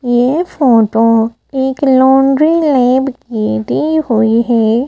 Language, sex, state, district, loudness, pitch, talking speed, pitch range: Hindi, female, Madhya Pradesh, Bhopal, -12 LUFS, 250 Hz, 110 wpm, 230-270 Hz